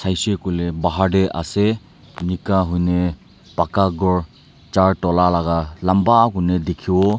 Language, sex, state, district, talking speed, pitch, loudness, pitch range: Nagamese, male, Nagaland, Dimapur, 115 wpm, 90 Hz, -19 LUFS, 85-95 Hz